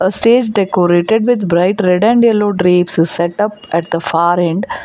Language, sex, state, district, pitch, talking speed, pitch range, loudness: English, female, Gujarat, Valsad, 185 Hz, 175 wpm, 175-210 Hz, -13 LUFS